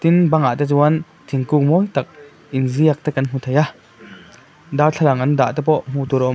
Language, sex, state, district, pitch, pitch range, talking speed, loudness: Mizo, male, Mizoram, Aizawl, 145 Hz, 135-155 Hz, 200 wpm, -18 LUFS